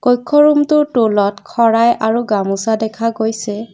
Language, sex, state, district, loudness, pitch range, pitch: Assamese, female, Assam, Kamrup Metropolitan, -14 LUFS, 220-245 Hz, 225 Hz